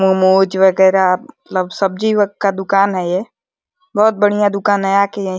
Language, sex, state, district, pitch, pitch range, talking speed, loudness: Hindi, male, Uttar Pradesh, Deoria, 195 Hz, 190-205 Hz, 180 wpm, -15 LUFS